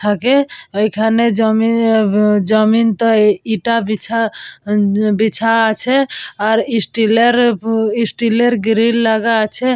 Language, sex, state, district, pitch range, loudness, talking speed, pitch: Bengali, female, West Bengal, Purulia, 215-230 Hz, -14 LUFS, 90 wpm, 225 Hz